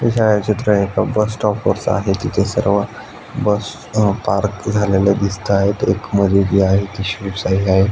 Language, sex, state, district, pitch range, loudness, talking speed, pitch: Marathi, male, Maharashtra, Aurangabad, 100-105 Hz, -17 LUFS, 160 wpm, 100 Hz